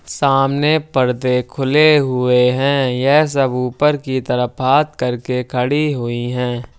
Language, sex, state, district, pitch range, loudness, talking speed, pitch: Hindi, male, Uttar Pradesh, Budaun, 125-145 Hz, -16 LUFS, 130 wpm, 130 Hz